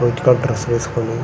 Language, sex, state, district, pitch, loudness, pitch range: Telugu, male, Andhra Pradesh, Srikakulam, 120 Hz, -18 LUFS, 115-125 Hz